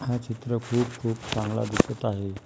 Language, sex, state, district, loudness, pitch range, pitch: Marathi, female, Maharashtra, Gondia, -28 LUFS, 110-120 Hz, 115 Hz